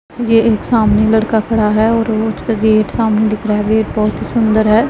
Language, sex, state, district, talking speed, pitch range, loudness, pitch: Hindi, female, Punjab, Pathankot, 220 wpm, 215-225 Hz, -13 LUFS, 220 Hz